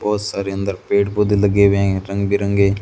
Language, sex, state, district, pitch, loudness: Hindi, male, Rajasthan, Bikaner, 100 Hz, -17 LUFS